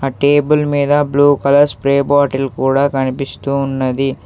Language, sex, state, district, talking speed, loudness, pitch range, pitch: Telugu, male, Telangana, Hyderabad, 125 wpm, -14 LUFS, 135-145 Hz, 140 Hz